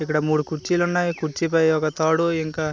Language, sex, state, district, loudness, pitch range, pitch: Telugu, male, Andhra Pradesh, Visakhapatnam, -22 LUFS, 155-165 Hz, 160 Hz